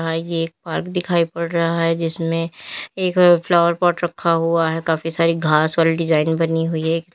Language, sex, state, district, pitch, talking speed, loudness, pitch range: Hindi, female, Uttar Pradesh, Lalitpur, 165 Hz, 195 wpm, -18 LUFS, 165-170 Hz